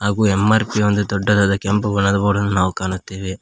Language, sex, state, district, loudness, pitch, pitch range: Kannada, male, Karnataka, Koppal, -18 LUFS, 100 Hz, 95-105 Hz